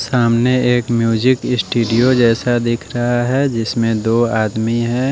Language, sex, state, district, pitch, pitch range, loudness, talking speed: Hindi, male, Odisha, Nuapada, 120 Hz, 115-125 Hz, -15 LUFS, 140 wpm